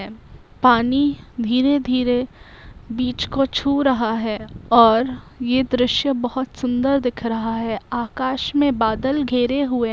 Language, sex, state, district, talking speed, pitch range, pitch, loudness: Hindi, female, Andhra Pradesh, Krishna, 145 wpm, 235-265 Hz, 250 Hz, -20 LUFS